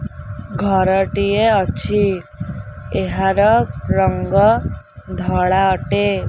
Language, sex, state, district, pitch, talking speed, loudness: Odia, female, Odisha, Khordha, 190 Hz, 55 wpm, -17 LUFS